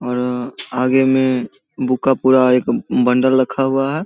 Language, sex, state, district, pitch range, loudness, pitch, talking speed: Hindi, male, Bihar, Samastipur, 125-130 Hz, -16 LUFS, 130 Hz, 160 wpm